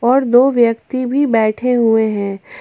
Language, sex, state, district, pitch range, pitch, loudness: Hindi, female, Jharkhand, Ranchi, 220-250 Hz, 240 Hz, -14 LUFS